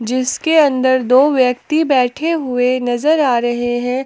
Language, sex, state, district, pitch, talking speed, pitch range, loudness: Hindi, female, Jharkhand, Palamu, 255 Hz, 145 wpm, 250-290 Hz, -15 LUFS